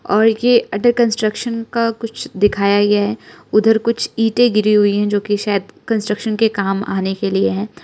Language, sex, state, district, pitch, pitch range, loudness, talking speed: Hindi, female, Arunachal Pradesh, Lower Dibang Valley, 215 Hz, 205-230 Hz, -16 LUFS, 190 wpm